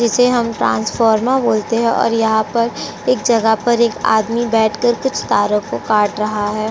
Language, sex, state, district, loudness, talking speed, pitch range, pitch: Hindi, female, Uttar Pradesh, Jyotiba Phule Nagar, -16 LUFS, 180 wpm, 215-235 Hz, 225 Hz